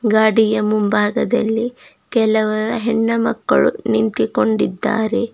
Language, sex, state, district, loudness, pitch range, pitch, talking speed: Kannada, female, Karnataka, Bidar, -17 LUFS, 210-230 Hz, 220 Hz, 55 wpm